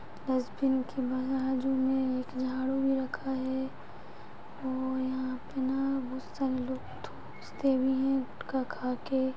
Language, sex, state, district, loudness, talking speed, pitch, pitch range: Hindi, female, Chhattisgarh, Sarguja, -32 LUFS, 140 wpm, 260 Hz, 260-265 Hz